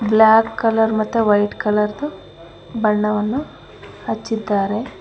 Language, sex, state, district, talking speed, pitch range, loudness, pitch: Kannada, female, Karnataka, Bangalore, 95 wpm, 210-225 Hz, -18 LUFS, 215 Hz